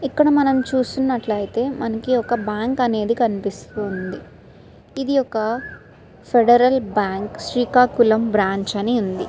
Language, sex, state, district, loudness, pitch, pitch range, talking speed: Telugu, female, Andhra Pradesh, Srikakulam, -19 LUFS, 235 Hz, 210-255 Hz, 105 wpm